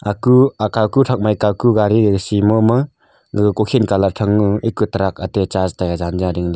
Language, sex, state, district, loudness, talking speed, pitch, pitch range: Wancho, male, Arunachal Pradesh, Longding, -16 LUFS, 155 wpm, 105 Hz, 95-110 Hz